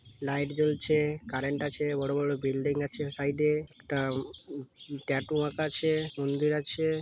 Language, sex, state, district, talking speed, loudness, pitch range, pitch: Bengali, male, West Bengal, Malda, 145 wpm, -30 LUFS, 140-150 Hz, 145 Hz